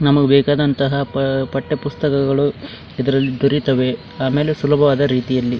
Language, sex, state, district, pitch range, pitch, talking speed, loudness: Kannada, male, Karnataka, Dharwad, 135-145 Hz, 140 Hz, 105 wpm, -17 LUFS